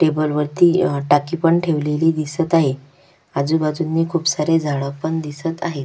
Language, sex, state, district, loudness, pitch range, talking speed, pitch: Marathi, female, Maharashtra, Sindhudurg, -19 LUFS, 145-165 Hz, 155 wpm, 160 Hz